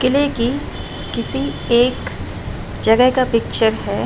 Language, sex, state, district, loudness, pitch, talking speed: Hindi, female, Uttar Pradesh, Jalaun, -18 LUFS, 225 Hz, 120 wpm